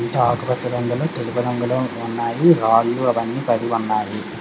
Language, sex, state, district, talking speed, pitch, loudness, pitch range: Telugu, male, Telangana, Hyderabad, 135 wpm, 120 Hz, -20 LUFS, 115-125 Hz